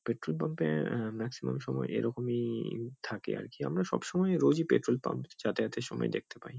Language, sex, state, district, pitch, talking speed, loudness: Bengali, male, West Bengal, Kolkata, 115 Hz, 175 wpm, -33 LUFS